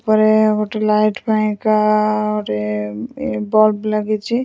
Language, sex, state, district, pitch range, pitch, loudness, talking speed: Odia, female, Odisha, Khordha, 210-215 Hz, 215 Hz, -17 LUFS, 110 wpm